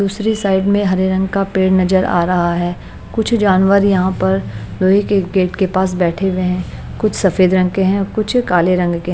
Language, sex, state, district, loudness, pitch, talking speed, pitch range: Hindi, female, Bihar, West Champaran, -15 LUFS, 190 Hz, 210 wpm, 180-200 Hz